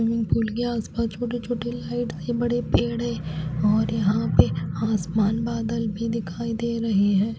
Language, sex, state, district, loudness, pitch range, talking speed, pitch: Hindi, female, Chhattisgarh, Raipur, -24 LUFS, 205-235 Hz, 185 wpm, 225 Hz